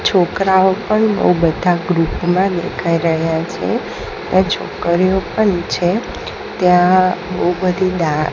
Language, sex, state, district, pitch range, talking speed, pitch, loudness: Gujarati, female, Gujarat, Gandhinagar, 170-190 Hz, 120 wpm, 180 Hz, -16 LUFS